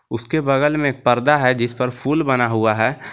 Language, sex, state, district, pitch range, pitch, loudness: Hindi, male, Jharkhand, Garhwa, 120-145 Hz, 125 Hz, -18 LUFS